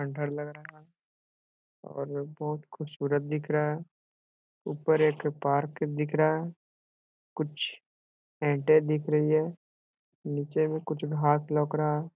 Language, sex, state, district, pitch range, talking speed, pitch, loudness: Hindi, male, Bihar, Jahanabad, 145-155 Hz, 140 wpm, 150 Hz, -29 LUFS